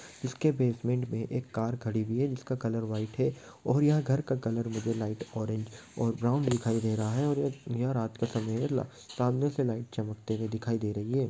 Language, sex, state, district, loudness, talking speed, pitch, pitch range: Hindi, male, Bihar, Lakhisarai, -31 LUFS, 225 wpm, 120 Hz, 110-130 Hz